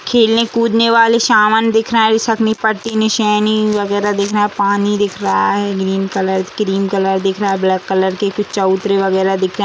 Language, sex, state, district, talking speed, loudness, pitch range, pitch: Hindi, female, Bihar, Vaishali, 215 wpm, -14 LUFS, 195-220 Hz, 205 Hz